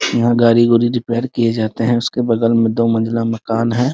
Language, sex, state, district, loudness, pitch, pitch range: Hindi, male, Bihar, Muzaffarpur, -15 LUFS, 115 Hz, 115-120 Hz